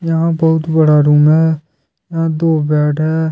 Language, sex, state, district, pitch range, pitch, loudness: Hindi, male, Jharkhand, Deoghar, 150-165 Hz, 160 Hz, -13 LUFS